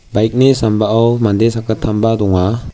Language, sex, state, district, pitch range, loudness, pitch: Garo, male, Meghalaya, West Garo Hills, 105-115 Hz, -13 LUFS, 110 Hz